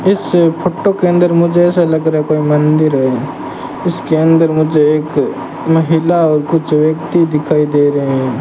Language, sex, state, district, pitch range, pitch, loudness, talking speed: Hindi, male, Rajasthan, Bikaner, 150-170 Hz, 155 Hz, -12 LUFS, 170 wpm